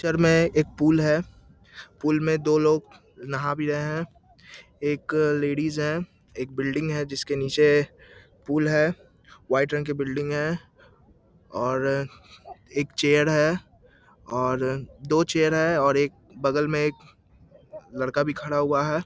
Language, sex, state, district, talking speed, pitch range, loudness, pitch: Hindi, male, Bihar, Lakhisarai, 145 wpm, 135-155 Hz, -24 LUFS, 145 Hz